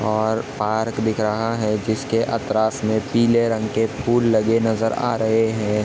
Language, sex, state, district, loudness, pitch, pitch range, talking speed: Hindi, male, Chhattisgarh, Balrampur, -20 LUFS, 110 Hz, 110-115 Hz, 175 wpm